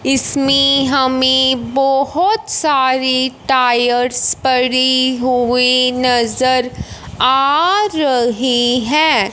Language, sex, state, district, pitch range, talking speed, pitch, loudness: Hindi, male, Punjab, Fazilka, 250-275 Hz, 70 wpm, 260 Hz, -13 LUFS